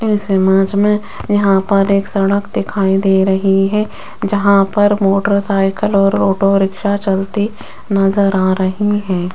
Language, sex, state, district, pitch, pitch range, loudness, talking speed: Hindi, female, Rajasthan, Jaipur, 195 Hz, 195-205 Hz, -14 LUFS, 140 wpm